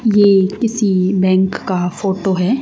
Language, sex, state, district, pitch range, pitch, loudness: Hindi, female, Haryana, Charkhi Dadri, 185-205 Hz, 195 Hz, -15 LUFS